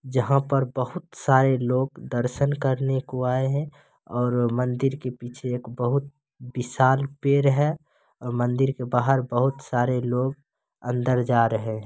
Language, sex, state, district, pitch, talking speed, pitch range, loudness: Angika, male, Bihar, Begusarai, 130 Hz, 150 wpm, 125-135 Hz, -24 LUFS